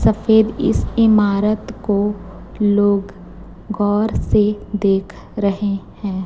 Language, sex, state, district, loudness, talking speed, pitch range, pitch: Hindi, female, Chhattisgarh, Raipur, -17 LUFS, 95 wpm, 200-210 Hz, 205 Hz